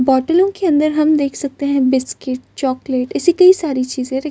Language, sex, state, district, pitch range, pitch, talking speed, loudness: Hindi, female, Maharashtra, Chandrapur, 260-310 Hz, 280 Hz, 210 wpm, -16 LUFS